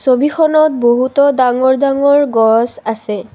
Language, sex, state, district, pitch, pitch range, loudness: Assamese, female, Assam, Kamrup Metropolitan, 260 Hz, 235-280 Hz, -12 LUFS